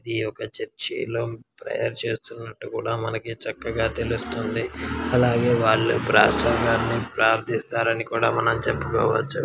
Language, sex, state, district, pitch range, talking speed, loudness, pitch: Telugu, male, Andhra Pradesh, Srikakulam, 115-120 Hz, 115 wpm, -23 LUFS, 115 Hz